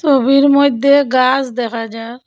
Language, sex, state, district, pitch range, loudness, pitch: Bengali, female, Assam, Hailakandi, 240-280 Hz, -13 LUFS, 265 Hz